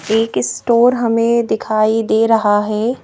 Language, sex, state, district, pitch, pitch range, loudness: Hindi, female, Madhya Pradesh, Bhopal, 225 Hz, 215-235 Hz, -15 LUFS